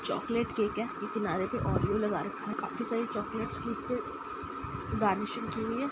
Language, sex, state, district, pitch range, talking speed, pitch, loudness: Hindi, female, Bihar, Sitamarhi, 210-245 Hz, 180 wpm, 225 Hz, -33 LUFS